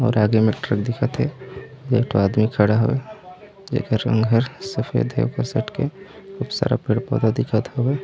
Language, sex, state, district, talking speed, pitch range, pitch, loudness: Chhattisgarhi, male, Chhattisgarh, Raigarh, 185 wpm, 110-140 Hz, 125 Hz, -21 LUFS